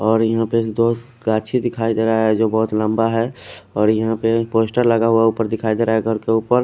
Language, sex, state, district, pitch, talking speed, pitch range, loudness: Hindi, male, Odisha, Khordha, 115 Hz, 235 wpm, 110-115 Hz, -18 LUFS